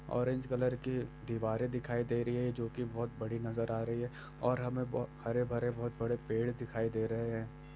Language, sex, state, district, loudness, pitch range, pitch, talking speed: Hindi, male, Bihar, Saran, -37 LUFS, 115-125 Hz, 120 Hz, 215 wpm